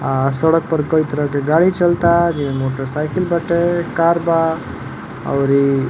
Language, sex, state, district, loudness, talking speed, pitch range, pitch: Bhojpuri, male, Uttar Pradesh, Varanasi, -16 LUFS, 155 wpm, 140-170 Hz, 160 Hz